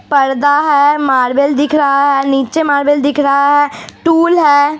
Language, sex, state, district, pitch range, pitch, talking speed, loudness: Hindi, female, Uttar Pradesh, Hamirpur, 280-295 Hz, 285 Hz, 175 wpm, -11 LUFS